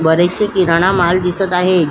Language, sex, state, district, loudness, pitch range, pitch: Marathi, female, Maharashtra, Solapur, -13 LUFS, 170-185 Hz, 180 Hz